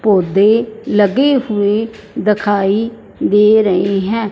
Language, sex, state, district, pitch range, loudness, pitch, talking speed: Hindi, male, Punjab, Fazilka, 200-225 Hz, -14 LUFS, 210 Hz, 95 wpm